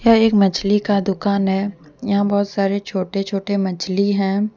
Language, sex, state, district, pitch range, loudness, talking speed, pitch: Hindi, female, Jharkhand, Deoghar, 195-205 Hz, -19 LUFS, 170 wpm, 200 Hz